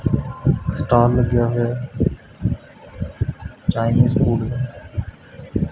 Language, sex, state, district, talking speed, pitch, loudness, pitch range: Punjabi, male, Punjab, Kapurthala, 75 wpm, 120 Hz, -21 LUFS, 115-125 Hz